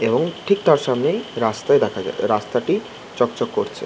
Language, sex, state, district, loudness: Bengali, male, West Bengal, Kolkata, -20 LUFS